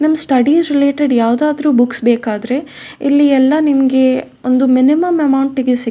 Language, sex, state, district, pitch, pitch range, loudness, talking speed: Kannada, female, Karnataka, Dakshina Kannada, 270 Hz, 255-290 Hz, -13 LUFS, 150 wpm